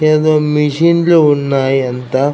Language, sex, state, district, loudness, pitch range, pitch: Telugu, male, Andhra Pradesh, Krishna, -12 LUFS, 135-155 Hz, 150 Hz